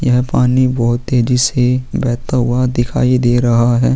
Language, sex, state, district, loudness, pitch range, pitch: Hindi, male, Chhattisgarh, Sukma, -14 LUFS, 120-125 Hz, 125 Hz